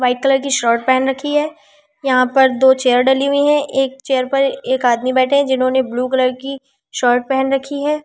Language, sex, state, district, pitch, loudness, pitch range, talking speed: Hindi, female, Delhi, New Delhi, 265 Hz, -15 LUFS, 255-275 Hz, 215 wpm